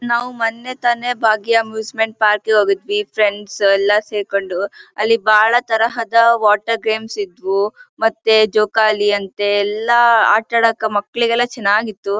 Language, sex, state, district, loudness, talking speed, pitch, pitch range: Kannada, female, Karnataka, Bellary, -16 LUFS, 120 wpm, 220 Hz, 205-230 Hz